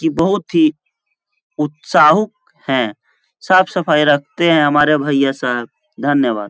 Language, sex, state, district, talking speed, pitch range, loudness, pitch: Hindi, male, Uttar Pradesh, Etah, 120 wpm, 145-180 Hz, -15 LUFS, 150 Hz